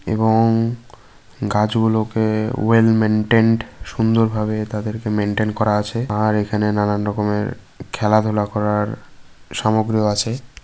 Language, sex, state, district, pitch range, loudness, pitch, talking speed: Bengali, male, West Bengal, Jalpaiguri, 105-115 Hz, -19 LUFS, 110 Hz, 70 wpm